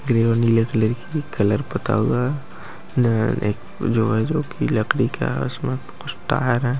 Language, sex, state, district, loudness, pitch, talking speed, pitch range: Hindi, male, Maharashtra, Chandrapur, -21 LUFS, 120 Hz, 150 wpm, 110-135 Hz